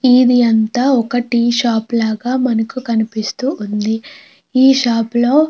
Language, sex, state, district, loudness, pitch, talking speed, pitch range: Telugu, female, Andhra Pradesh, Krishna, -15 LUFS, 240 Hz, 140 wpm, 225-255 Hz